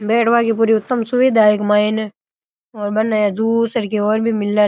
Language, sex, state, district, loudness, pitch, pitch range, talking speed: Rajasthani, male, Rajasthan, Nagaur, -16 LUFS, 220 Hz, 210-230 Hz, 230 wpm